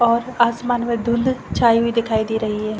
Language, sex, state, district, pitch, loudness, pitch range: Hindi, female, Chhattisgarh, Bastar, 235 Hz, -19 LUFS, 225-240 Hz